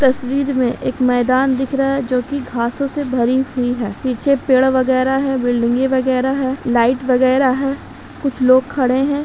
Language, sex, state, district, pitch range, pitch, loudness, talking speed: Hindi, female, Bihar, Begusarai, 250-270 Hz, 260 Hz, -17 LUFS, 180 wpm